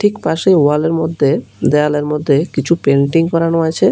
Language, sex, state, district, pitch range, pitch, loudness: Bengali, male, Tripura, West Tripura, 150-165 Hz, 160 Hz, -14 LUFS